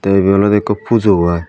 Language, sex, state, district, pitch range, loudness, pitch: Chakma, male, Tripura, Dhalai, 95-105 Hz, -13 LUFS, 100 Hz